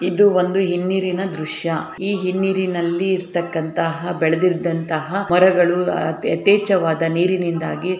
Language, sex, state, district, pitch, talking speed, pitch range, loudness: Kannada, female, Karnataka, Shimoga, 180 Hz, 90 wpm, 165-190 Hz, -19 LUFS